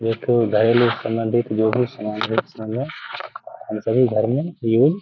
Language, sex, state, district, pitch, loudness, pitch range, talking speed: Hindi, male, Bihar, Gaya, 115 Hz, -20 LUFS, 110-125 Hz, 105 wpm